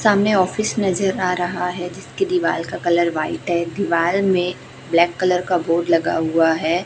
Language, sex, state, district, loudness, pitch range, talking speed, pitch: Hindi, female, Chhattisgarh, Raipur, -19 LUFS, 170-190 Hz, 185 wpm, 180 Hz